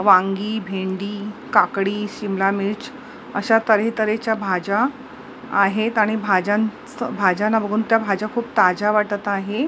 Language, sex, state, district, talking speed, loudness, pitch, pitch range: Marathi, female, Maharashtra, Mumbai Suburban, 130 wpm, -20 LUFS, 210 Hz, 200-220 Hz